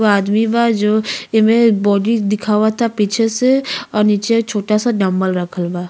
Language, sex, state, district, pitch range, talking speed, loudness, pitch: Bhojpuri, female, Uttar Pradesh, Ghazipur, 205-230 Hz, 165 wpm, -15 LUFS, 215 Hz